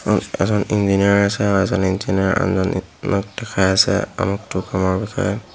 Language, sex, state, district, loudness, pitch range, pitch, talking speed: Assamese, male, Assam, Hailakandi, -19 LUFS, 95-100 Hz, 100 Hz, 140 wpm